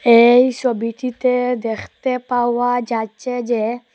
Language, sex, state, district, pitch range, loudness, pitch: Bengali, female, Assam, Hailakandi, 230-250 Hz, -18 LUFS, 245 Hz